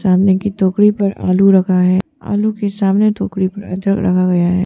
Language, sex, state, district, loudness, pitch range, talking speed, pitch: Hindi, female, Arunachal Pradesh, Papum Pare, -14 LUFS, 185-200 Hz, 205 wpm, 195 Hz